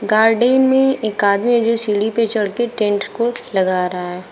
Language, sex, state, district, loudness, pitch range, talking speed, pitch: Hindi, female, Uttar Pradesh, Shamli, -16 LUFS, 200-235 Hz, 180 wpm, 215 Hz